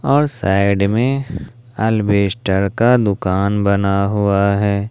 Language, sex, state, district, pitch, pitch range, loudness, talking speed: Hindi, male, Jharkhand, Ranchi, 100 Hz, 100-115 Hz, -16 LUFS, 110 wpm